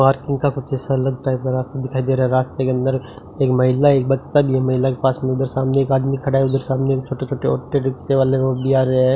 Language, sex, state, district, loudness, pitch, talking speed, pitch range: Hindi, male, Rajasthan, Bikaner, -19 LUFS, 135 Hz, 275 wpm, 130-135 Hz